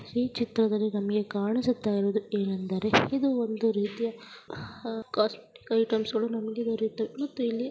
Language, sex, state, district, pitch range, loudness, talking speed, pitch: Kannada, female, Karnataka, Dharwad, 210-235 Hz, -29 LUFS, 115 wpm, 225 Hz